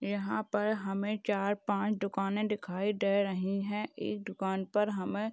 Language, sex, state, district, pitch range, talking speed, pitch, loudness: Hindi, female, Maharashtra, Chandrapur, 195-210 Hz, 155 wpm, 200 Hz, -33 LUFS